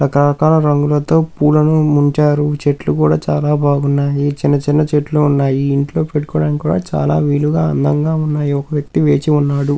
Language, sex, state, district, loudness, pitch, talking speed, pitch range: Telugu, male, Andhra Pradesh, Krishna, -14 LUFS, 145 Hz, 155 wpm, 140-150 Hz